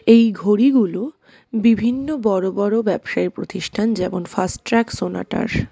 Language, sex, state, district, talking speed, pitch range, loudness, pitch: Bengali, female, West Bengal, Darjeeling, 105 wpm, 190-230 Hz, -19 LUFS, 220 Hz